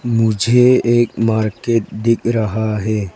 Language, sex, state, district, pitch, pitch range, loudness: Hindi, female, Arunachal Pradesh, Lower Dibang Valley, 115 Hz, 110-120 Hz, -16 LUFS